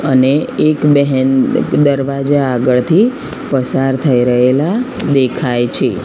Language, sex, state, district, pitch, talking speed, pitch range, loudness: Gujarati, female, Gujarat, Gandhinagar, 135 Hz, 100 wpm, 130-150 Hz, -13 LUFS